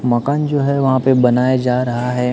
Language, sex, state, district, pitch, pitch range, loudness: Hindi, male, Maharashtra, Gondia, 125 Hz, 125-135 Hz, -16 LUFS